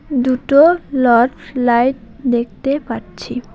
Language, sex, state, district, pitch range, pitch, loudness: Bengali, female, West Bengal, Alipurduar, 235-270 Hz, 250 Hz, -15 LUFS